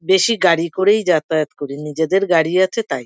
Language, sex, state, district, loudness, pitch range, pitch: Bengali, female, West Bengal, Kolkata, -17 LUFS, 155-190 Hz, 175 Hz